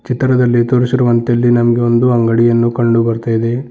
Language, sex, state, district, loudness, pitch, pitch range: Kannada, male, Karnataka, Bidar, -12 LUFS, 120 Hz, 115-125 Hz